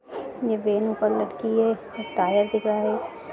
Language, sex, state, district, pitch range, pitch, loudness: Hindi, female, Bihar, Gaya, 210-225 Hz, 215 Hz, -24 LUFS